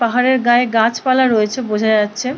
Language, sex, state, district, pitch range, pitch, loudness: Bengali, female, West Bengal, Purulia, 220-255 Hz, 240 Hz, -15 LUFS